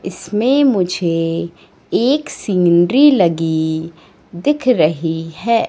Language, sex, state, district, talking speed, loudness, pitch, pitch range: Hindi, female, Madhya Pradesh, Katni, 85 wpm, -15 LUFS, 175 Hz, 165-250 Hz